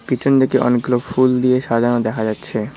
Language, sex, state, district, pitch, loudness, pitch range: Bengali, male, West Bengal, Cooch Behar, 125 Hz, -17 LUFS, 115-130 Hz